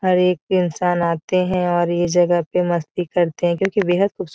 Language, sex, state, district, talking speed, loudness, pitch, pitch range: Hindi, female, Bihar, Jahanabad, 220 wpm, -19 LUFS, 175 Hz, 175-185 Hz